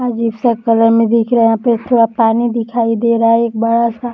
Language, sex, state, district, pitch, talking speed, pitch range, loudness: Hindi, female, Uttar Pradesh, Deoria, 230 Hz, 275 wpm, 230-235 Hz, -13 LUFS